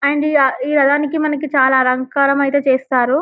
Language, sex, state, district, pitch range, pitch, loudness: Telugu, female, Telangana, Karimnagar, 265-290 Hz, 280 Hz, -15 LUFS